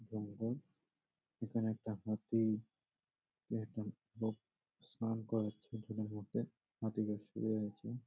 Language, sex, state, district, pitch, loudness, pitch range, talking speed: Bengali, male, West Bengal, Malda, 110 Hz, -42 LUFS, 105-115 Hz, 90 wpm